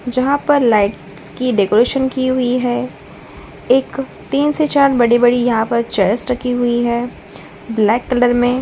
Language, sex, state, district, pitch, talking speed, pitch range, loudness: Hindi, female, Bihar, Saran, 245 Hz, 155 wpm, 235-260 Hz, -15 LUFS